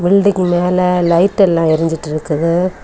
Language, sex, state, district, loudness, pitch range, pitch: Tamil, female, Tamil Nadu, Kanyakumari, -14 LUFS, 165-185 Hz, 175 Hz